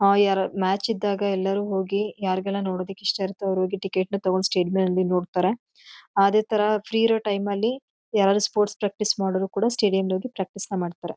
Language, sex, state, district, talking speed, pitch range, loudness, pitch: Kannada, female, Karnataka, Chamarajanagar, 195 wpm, 190-205 Hz, -24 LUFS, 195 Hz